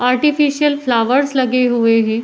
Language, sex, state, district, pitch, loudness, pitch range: Hindi, female, Uttar Pradesh, Etah, 255 Hz, -15 LUFS, 235-285 Hz